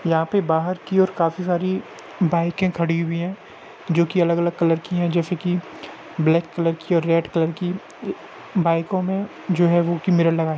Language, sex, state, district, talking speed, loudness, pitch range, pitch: Hindi, male, Uttar Pradesh, Jalaun, 200 wpm, -21 LUFS, 165-180 Hz, 170 Hz